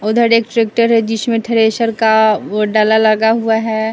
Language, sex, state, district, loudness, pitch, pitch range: Hindi, female, Bihar, West Champaran, -13 LUFS, 225 Hz, 220-230 Hz